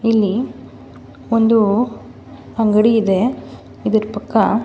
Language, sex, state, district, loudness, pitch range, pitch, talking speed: Kannada, female, Karnataka, Mysore, -16 LUFS, 210-230 Hz, 225 Hz, 75 wpm